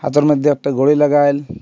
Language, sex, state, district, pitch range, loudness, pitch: Bengali, male, Assam, Hailakandi, 140-150 Hz, -14 LUFS, 145 Hz